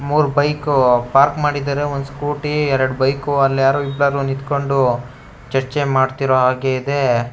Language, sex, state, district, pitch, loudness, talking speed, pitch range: Kannada, male, Karnataka, Shimoga, 140 Hz, -17 LUFS, 105 wpm, 130-145 Hz